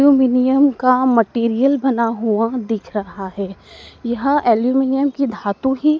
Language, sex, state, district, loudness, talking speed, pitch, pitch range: Hindi, female, Madhya Pradesh, Dhar, -17 LUFS, 130 wpm, 250 Hz, 225-270 Hz